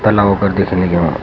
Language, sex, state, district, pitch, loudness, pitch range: Garhwali, male, Uttarakhand, Uttarkashi, 100 Hz, -14 LUFS, 90-100 Hz